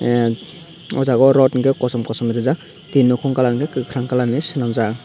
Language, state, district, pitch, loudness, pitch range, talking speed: Kokborok, Tripura, Dhalai, 130 Hz, -18 LUFS, 120-135 Hz, 155 wpm